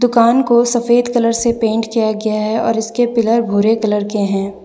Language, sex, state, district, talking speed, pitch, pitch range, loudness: Hindi, female, Jharkhand, Deoghar, 205 wpm, 225 Hz, 215-235 Hz, -15 LUFS